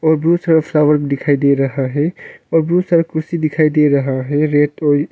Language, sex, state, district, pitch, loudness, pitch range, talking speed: Hindi, male, Arunachal Pradesh, Longding, 150 Hz, -15 LUFS, 145-160 Hz, 200 wpm